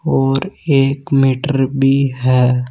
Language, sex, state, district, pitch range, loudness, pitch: Hindi, male, Uttar Pradesh, Saharanpur, 130-140 Hz, -15 LUFS, 135 Hz